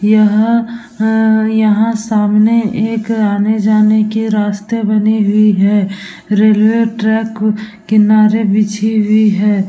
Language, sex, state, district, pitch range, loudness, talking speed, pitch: Hindi, female, Bihar, Vaishali, 210-220 Hz, -12 LUFS, 105 wpm, 215 Hz